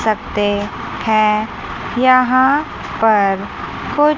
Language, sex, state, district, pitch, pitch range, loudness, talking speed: Hindi, female, Chandigarh, Chandigarh, 220 Hz, 205-255 Hz, -16 LUFS, 70 wpm